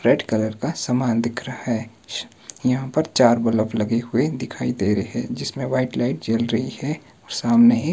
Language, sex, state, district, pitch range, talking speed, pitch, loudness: Hindi, male, Himachal Pradesh, Shimla, 110-130 Hz, 195 wpm, 120 Hz, -22 LUFS